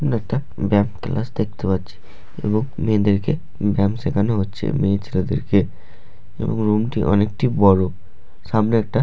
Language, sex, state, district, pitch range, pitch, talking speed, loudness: Bengali, male, West Bengal, Malda, 100-110 Hz, 105 Hz, 135 wpm, -20 LUFS